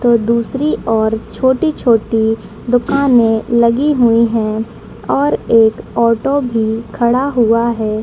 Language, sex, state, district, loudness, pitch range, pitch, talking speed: Hindi, female, Bihar, Madhepura, -14 LUFS, 225-245 Hz, 235 Hz, 110 wpm